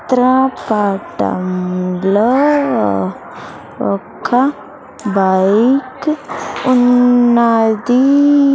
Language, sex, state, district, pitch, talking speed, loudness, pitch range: Telugu, female, Andhra Pradesh, Sri Satya Sai, 245 Hz, 40 wpm, -14 LUFS, 195-265 Hz